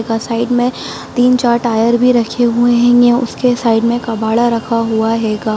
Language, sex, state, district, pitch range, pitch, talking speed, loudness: Hindi, female, Bihar, Saran, 225-245 Hz, 235 Hz, 150 wpm, -13 LUFS